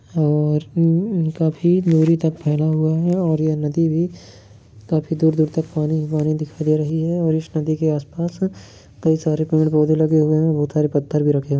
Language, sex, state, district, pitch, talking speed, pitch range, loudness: Hindi, male, Jharkhand, Jamtara, 155 Hz, 185 wpm, 150-160 Hz, -19 LUFS